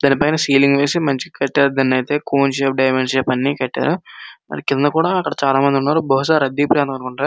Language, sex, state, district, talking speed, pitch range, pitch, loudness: Telugu, male, Andhra Pradesh, Srikakulam, 180 wpm, 135-145 Hz, 140 Hz, -17 LUFS